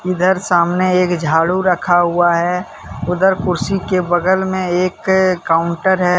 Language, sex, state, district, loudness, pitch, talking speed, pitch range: Hindi, male, Jharkhand, Deoghar, -15 LUFS, 180 Hz, 145 wpm, 175-185 Hz